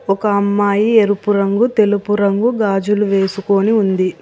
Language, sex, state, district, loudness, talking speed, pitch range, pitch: Telugu, female, Telangana, Hyderabad, -15 LUFS, 130 wpm, 200-210 Hz, 205 Hz